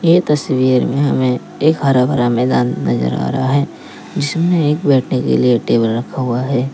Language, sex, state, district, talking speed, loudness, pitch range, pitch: Hindi, male, Uttar Pradesh, Lalitpur, 185 wpm, -15 LUFS, 120-145 Hz, 130 Hz